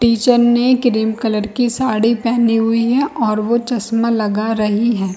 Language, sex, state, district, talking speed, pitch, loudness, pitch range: Hindi, female, Chhattisgarh, Bilaspur, 185 wpm, 230 Hz, -15 LUFS, 220-240 Hz